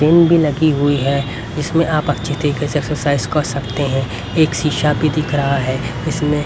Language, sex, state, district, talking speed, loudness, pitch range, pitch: Hindi, male, Haryana, Rohtak, 195 wpm, -17 LUFS, 140-150 Hz, 145 Hz